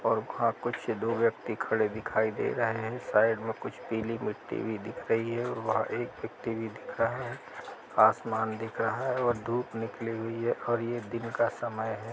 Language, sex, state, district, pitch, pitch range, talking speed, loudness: Hindi, male, Uttar Pradesh, Jalaun, 115 Hz, 110-120 Hz, 205 wpm, -31 LUFS